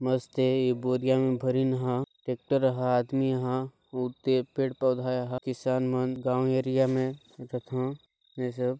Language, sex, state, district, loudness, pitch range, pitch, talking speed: Chhattisgarhi, male, Chhattisgarh, Balrampur, -28 LUFS, 125-130 Hz, 130 Hz, 150 wpm